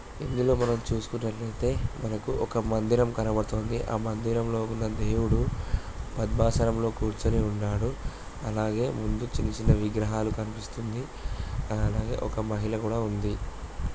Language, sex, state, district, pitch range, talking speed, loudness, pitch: Telugu, male, Andhra Pradesh, Guntur, 105-115 Hz, 105 wpm, -29 LUFS, 110 Hz